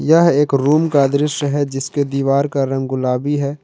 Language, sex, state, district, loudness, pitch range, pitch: Hindi, male, Jharkhand, Ranchi, -16 LUFS, 135-145 Hz, 140 Hz